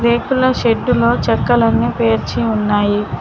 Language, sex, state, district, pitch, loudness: Telugu, female, Telangana, Mahabubabad, 170 Hz, -15 LUFS